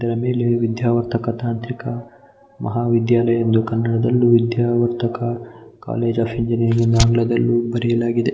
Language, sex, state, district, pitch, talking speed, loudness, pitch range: Kannada, male, Karnataka, Mysore, 120 Hz, 95 wpm, -19 LUFS, 115-120 Hz